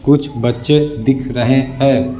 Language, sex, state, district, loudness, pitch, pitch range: Hindi, male, Bihar, Patna, -15 LUFS, 135 Hz, 125-140 Hz